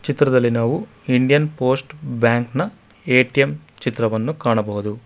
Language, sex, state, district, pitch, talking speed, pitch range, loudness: Kannada, male, Karnataka, Bangalore, 125 Hz, 105 wpm, 115-145 Hz, -19 LUFS